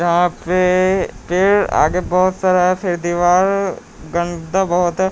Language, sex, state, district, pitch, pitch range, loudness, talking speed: Hindi, male, Bihar, Patna, 180 Hz, 175-185 Hz, -16 LUFS, 115 wpm